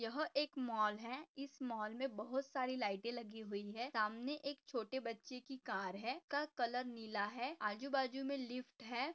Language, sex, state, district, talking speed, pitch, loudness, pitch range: Hindi, female, Maharashtra, Pune, 185 wpm, 250 Hz, -43 LUFS, 220-270 Hz